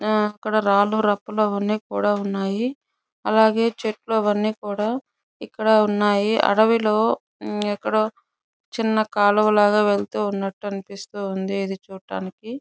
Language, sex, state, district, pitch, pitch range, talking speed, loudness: Telugu, female, Andhra Pradesh, Chittoor, 210 Hz, 200-220 Hz, 105 wpm, -21 LUFS